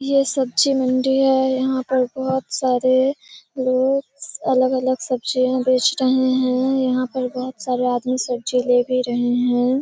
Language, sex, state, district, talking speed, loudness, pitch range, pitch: Hindi, female, Bihar, Kishanganj, 155 wpm, -19 LUFS, 255-265 Hz, 255 Hz